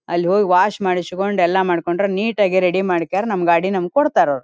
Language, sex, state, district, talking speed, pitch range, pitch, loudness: Kannada, female, Karnataka, Dharwad, 200 wpm, 175-200 Hz, 185 Hz, -17 LUFS